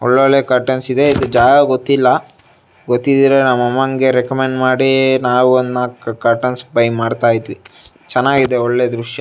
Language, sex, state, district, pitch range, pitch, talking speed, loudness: Kannada, male, Karnataka, Shimoga, 125-135 Hz, 130 Hz, 135 wpm, -14 LUFS